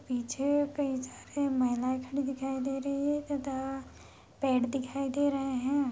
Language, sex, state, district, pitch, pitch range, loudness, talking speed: Hindi, female, Bihar, Madhepura, 270 Hz, 260-280 Hz, -32 LUFS, 150 wpm